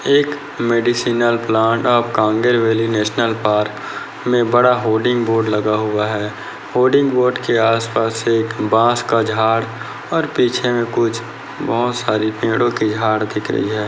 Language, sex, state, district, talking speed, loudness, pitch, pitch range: Hindi, male, Chhattisgarh, Bastar, 145 wpm, -17 LUFS, 115 Hz, 110-120 Hz